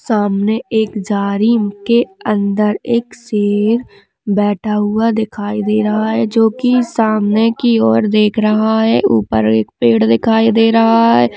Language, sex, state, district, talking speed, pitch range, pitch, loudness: Hindi, female, Maharashtra, Sindhudurg, 150 wpm, 205-225 Hz, 215 Hz, -14 LUFS